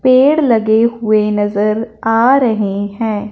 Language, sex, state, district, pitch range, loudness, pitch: Hindi, female, Punjab, Fazilka, 210-235 Hz, -13 LUFS, 220 Hz